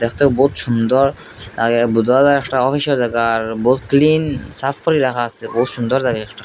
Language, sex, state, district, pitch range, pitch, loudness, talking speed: Bengali, male, Assam, Hailakandi, 115-140 Hz, 125 Hz, -16 LUFS, 165 wpm